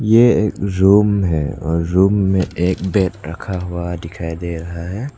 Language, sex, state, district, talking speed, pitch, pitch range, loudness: Hindi, male, Arunachal Pradesh, Lower Dibang Valley, 175 wpm, 95 Hz, 85-100 Hz, -17 LUFS